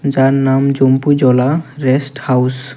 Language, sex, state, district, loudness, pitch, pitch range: Bengali, male, Tripura, West Tripura, -13 LUFS, 135 Hz, 130-140 Hz